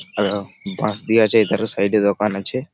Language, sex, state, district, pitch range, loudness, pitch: Bengali, male, West Bengal, Malda, 100-110 Hz, -19 LUFS, 105 Hz